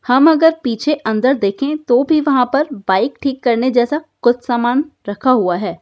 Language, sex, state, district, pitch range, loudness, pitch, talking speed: Hindi, female, Uttar Pradesh, Budaun, 240-285 Hz, -15 LUFS, 255 Hz, 185 wpm